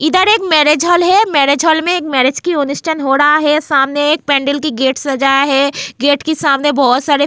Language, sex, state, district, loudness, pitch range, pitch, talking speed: Hindi, female, Goa, North and South Goa, -12 LUFS, 275-315 Hz, 290 Hz, 230 wpm